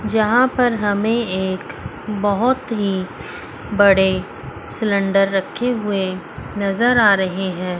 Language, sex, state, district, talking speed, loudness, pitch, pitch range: Hindi, female, Chandigarh, Chandigarh, 105 wpm, -18 LUFS, 205 Hz, 190-225 Hz